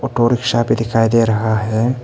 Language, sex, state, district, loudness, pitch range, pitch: Hindi, male, Arunachal Pradesh, Papum Pare, -16 LUFS, 110-120 Hz, 115 Hz